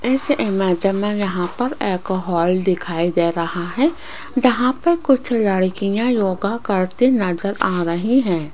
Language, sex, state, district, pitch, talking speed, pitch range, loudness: Hindi, female, Rajasthan, Jaipur, 200 Hz, 150 wpm, 180-245 Hz, -19 LUFS